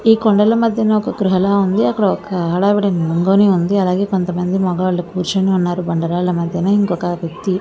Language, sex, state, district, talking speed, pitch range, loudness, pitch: Telugu, female, Andhra Pradesh, Visakhapatnam, 275 wpm, 175-200 Hz, -16 LUFS, 185 Hz